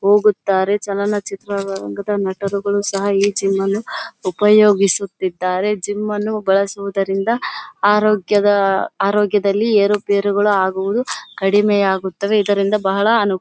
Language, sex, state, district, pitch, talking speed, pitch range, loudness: Kannada, female, Karnataka, Bellary, 200 Hz, 100 wpm, 195-210 Hz, -17 LUFS